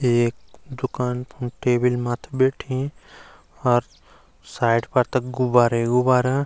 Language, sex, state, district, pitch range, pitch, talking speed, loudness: Garhwali, male, Uttarakhand, Uttarkashi, 120-130 Hz, 125 Hz, 120 wpm, -22 LUFS